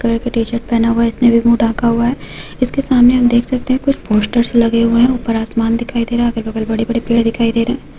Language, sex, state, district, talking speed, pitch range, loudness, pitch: Hindi, female, West Bengal, Purulia, 280 wpm, 230-240 Hz, -14 LUFS, 235 Hz